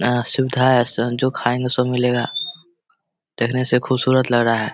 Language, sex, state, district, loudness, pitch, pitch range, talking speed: Hindi, male, Bihar, Samastipur, -19 LUFS, 125 Hz, 120-130 Hz, 165 wpm